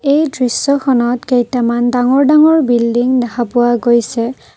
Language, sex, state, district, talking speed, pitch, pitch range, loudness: Assamese, female, Assam, Kamrup Metropolitan, 120 wpm, 245 Hz, 240-270 Hz, -13 LUFS